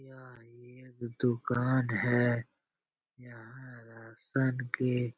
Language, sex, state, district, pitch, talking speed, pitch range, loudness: Hindi, male, Bihar, Jahanabad, 125 Hz, 95 wpm, 120-130 Hz, -31 LUFS